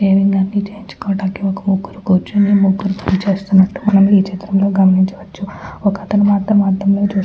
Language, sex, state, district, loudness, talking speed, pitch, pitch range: Telugu, female, Telangana, Nalgonda, -15 LUFS, 130 wpm, 195 Hz, 190-200 Hz